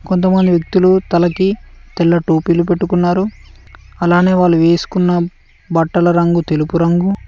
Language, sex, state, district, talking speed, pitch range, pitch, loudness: Telugu, male, Telangana, Mahabubabad, 105 wpm, 170-185 Hz, 175 Hz, -14 LUFS